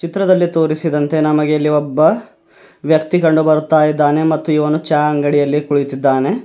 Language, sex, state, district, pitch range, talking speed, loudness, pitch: Kannada, male, Karnataka, Bidar, 150-160 Hz, 120 wpm, -14 LUFS, 155 Hz